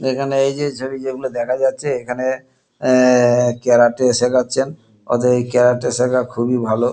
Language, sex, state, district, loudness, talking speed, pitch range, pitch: Bengali, male, West Bengal, Kolkata, -17 LUFS, 140 wpm, 120-130 Hz, 125 Hz